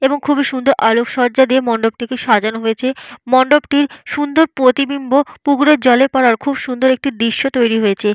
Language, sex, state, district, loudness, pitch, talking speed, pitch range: Bengali, female, Jharkhand, Jamtara, -14 LUFS, 260 Hz, 155 wpm, 235-280 Hz